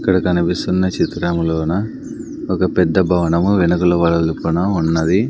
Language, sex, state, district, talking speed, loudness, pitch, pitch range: Telugu, male, Andhra Pradesh, Sri Satya Sai, 100 wpm, -17 LUFS, 85 Hz, 85-90 Hz